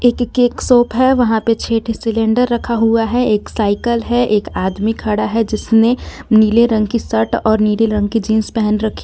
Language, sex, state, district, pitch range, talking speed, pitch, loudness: Hindi, female, Jharkhand, Garhwa, 215-235 Hz, 205 wpm, 225 Hz, -15 LUFS